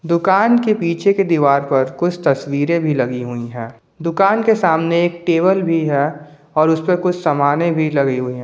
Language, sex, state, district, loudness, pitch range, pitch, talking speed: Hindi, male, Jharkhand, Ranchi, -16 LUFS, 140-175 Hz, 160 Hz, 190 wpm